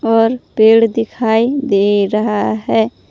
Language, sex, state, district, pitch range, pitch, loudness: Hindi, female, Jharkhand, Palamu, 200-225 Hz, 220 Hz, -14 LUFS